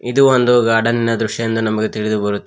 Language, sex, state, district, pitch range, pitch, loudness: Kannada, male, Karnataka, Koppal, 110-120 Hz, 115 Hz, -15 LUFS